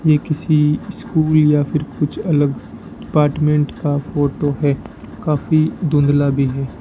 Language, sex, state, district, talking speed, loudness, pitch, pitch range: Hindi, male, Rajasthan, Bikaner, 130 wpm, -17 LUFS, 150 Hz, 145-155 Hz